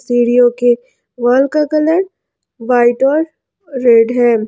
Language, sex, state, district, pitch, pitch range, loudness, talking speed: Hindi, female, Jharkhand, Ranchi, 250 Hz, 240-305 Hz, -13 LUFS, 120 wpm